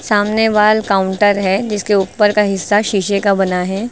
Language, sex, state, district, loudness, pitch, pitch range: Hindi, female, Uttar Pradesh, Lucknow, -14 LUFS, 205 Hz, 195-210 Hz